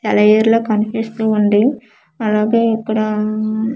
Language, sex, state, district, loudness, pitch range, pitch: Telugu, female, Andhra Pradesh, Manyam, -15 LUFS, 215-225 Hz, 220 Hz